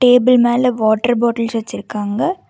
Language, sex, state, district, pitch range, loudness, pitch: Tamil, female, Karnataka, Bangalore, 225-250 Hz, -15 LUFS, 240 Hz